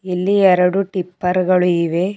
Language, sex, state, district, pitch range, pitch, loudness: Kannada, female, Karnataka, Bidar, 180-190 Hz, 185 Hz, -16 LUFS